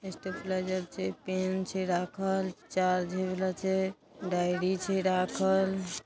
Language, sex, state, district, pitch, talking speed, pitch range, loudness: Maithili, female, Bihar, Darbhanga, 185 Hz, 120 wpm, 185-190 Hz, -31 LUFS